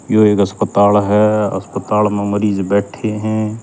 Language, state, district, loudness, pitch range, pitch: Haryanvi, Haryana, Rohtak, -15 LUFS, 100-105 Hz, 105 Hz